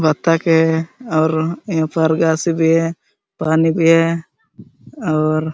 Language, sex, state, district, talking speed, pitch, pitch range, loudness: Hindi, male, Jharkhand, Sahebganj, 140 wpm, 160 Hz, 160-165 Hz, -16 LUFS